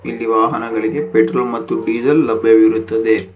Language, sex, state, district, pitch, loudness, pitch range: Kannada, male, Karnataka, Bangalore, 110 Hz, -15 LUFS, 110-115 Hz